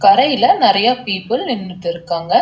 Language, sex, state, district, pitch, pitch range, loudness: Tamil, female, Tamil Nadu, Chennai, 225 Hz, 185-255 Hz, -15 LUFS